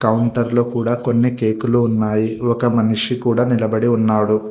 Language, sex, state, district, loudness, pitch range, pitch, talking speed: Telugu, male, Telangana, Hyderabad, -17 LUFS, 110-120 Hz, 120 Hz, 135 wpm